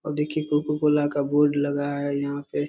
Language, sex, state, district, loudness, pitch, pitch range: Hindi, male, Bihar, Darbhanga, -24 LUFS, 145 Hz, 145-150 Hz